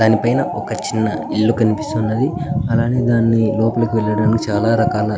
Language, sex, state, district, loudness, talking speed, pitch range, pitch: Telugu, male, Andhra Pradesh, Anantapur, -17 LUFS, 150 wpm, 105-115 Hz, 110 Hz